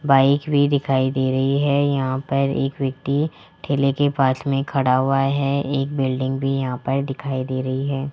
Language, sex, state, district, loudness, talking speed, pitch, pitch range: Hindi, male, Rajasthan, Jaipur, -21 LUFS, 190 wpm, 135 Hz, 135-140 Hz